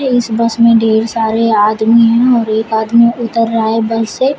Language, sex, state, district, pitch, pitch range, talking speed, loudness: Hindi, female, Uttar Pradesh, Shamli, 230 Hz, 220-235 Hz, 205 wpm, -11 LUFS